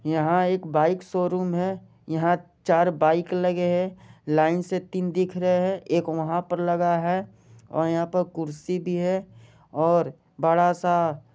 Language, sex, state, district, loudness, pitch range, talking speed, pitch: Hindi, male, Jharkhand, Jamtara, -24 LUFS, 160-180 Hz, 160 wpm, 175 Hz